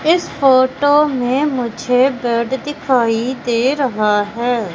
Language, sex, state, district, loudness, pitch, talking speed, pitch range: Hindi, female, Madhya Pradesh, Katni, -16 LUFS, 255 Hz, 115 wpm, 235-275 Hz